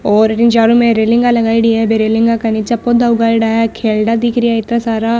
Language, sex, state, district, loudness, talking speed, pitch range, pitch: Marwari, female, Rajasthan, Nagaur, -12 LUFS, 220 wpm, 225-235 Hz, 230 Hz